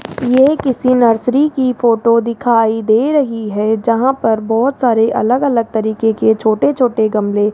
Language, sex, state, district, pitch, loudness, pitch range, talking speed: Hindi, male, Rajasthan, Jaipur, 230 Hz, -13 LUFS, 220-255 Hz, 160 wpm